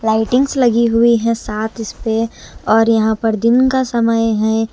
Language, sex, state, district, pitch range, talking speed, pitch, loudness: Hindi, female, Bihar, West Champaran, 220-235 Hz, 180 wpm, 225 Hz, -15 LUFS